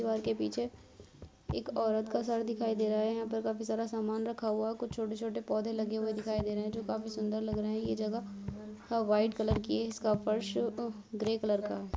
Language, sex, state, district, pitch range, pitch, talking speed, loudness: Hindi, female, Uttar Pradesh, Hamirpur, 210-225 Hz, 220 Hz, 230 wpm, -34 LUFS